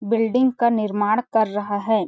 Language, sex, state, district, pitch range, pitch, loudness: Hindi, female, Chhattisgarh, Balrampur, 210-230 Hz, 220 Hz, -20 LUFS